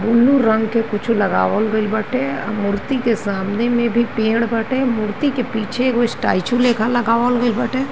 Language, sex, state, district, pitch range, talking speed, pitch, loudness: Bhojpuri, female, Uttar Pradesh, Ghazipur, 220-245 Hz, 175 wpm, 230 Hz, -18 LUFS